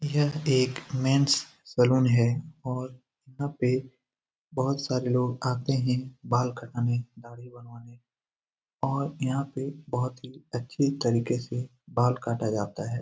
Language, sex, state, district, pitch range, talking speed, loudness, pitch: Hindi, male, Bihar, Lakhisarai, 120-135 Hz, 150 wpm, -28 LUFS, 125 Hz